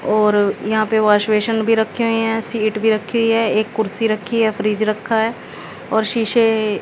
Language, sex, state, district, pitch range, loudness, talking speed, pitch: Hindi, female, Haryana, Jhajjar, 215-225 Hz, -17 LUFS, 200 wpm, 220 Hz